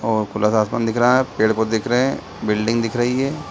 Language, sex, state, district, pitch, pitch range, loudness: Hindi, male, Uttar Pradesh, Deoria, 115 Hz, 110-125 Hz, -19 LUFS